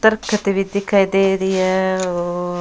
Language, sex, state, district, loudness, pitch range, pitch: Rajasthani, female, Rajasthan, Churu, -18 LUFS, 185-200 Hz, 190 Hz